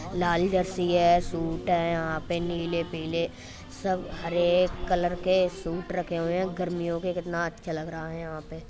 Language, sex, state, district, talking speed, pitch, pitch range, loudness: Hindi, male, Uttar Pradesh, Etah, 180 wpm, 175 Hz, 165-180 Hz, -28 LUFS